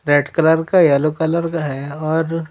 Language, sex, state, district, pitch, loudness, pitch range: Hindi, female, Madhya Pradesh, Umaria, 160 Hz, -17 LUFS, 145-165 Hz